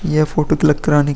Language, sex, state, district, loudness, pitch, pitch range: Hindi, male, Uttar Pradesh, Muzaffarnagar, -16 LUFS, 150 Hz, 150-155 Hz